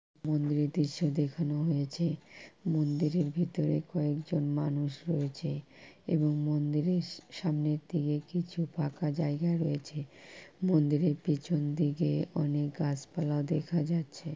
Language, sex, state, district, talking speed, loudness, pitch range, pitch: Bengali, female, West Bengal, Purulia, 95 wpm, -32 LUFS, 145-165 Hz, 155 Hz